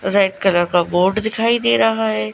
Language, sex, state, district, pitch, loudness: Hindi, female, Gujarat, Gandhinagar, 180 Hz, -16 LUFS